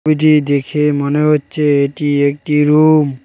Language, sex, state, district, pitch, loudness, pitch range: Bengali, male, West Bengal, Cooch Behar, 150 Hz, -13 LUFS, 140-150 Hz